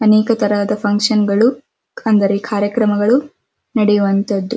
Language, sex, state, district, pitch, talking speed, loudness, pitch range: Kannada, female, Karnataka, Dharwad, 210 Hz, 80 wpm, -15 LUFS, 205-225 Hz